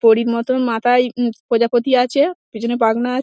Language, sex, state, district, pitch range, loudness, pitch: Bengali, female, West Bengal, Dakshin Dinajpur, 230-250 Hz, -17 LUFS, 240 Hz